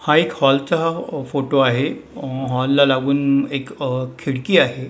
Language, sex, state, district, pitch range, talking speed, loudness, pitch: Marathi, male, Maharashtra, Mumbai Suburban, 130-140 Hz, 145 wpm, -19 LUFS, 135 Hz